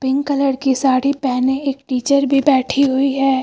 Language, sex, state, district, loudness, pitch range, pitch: Hindi, female, Uttar Pradesh, Lucknow, -16 LUFS, 265-280 Hz, 270 Hz